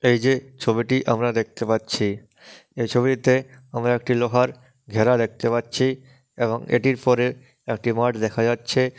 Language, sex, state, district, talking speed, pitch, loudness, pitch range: Bengali, male, West Bengal, Dakshin Dinajpur, 140 wpm, 120 Hz, -22 LUFS, 115-130 Hz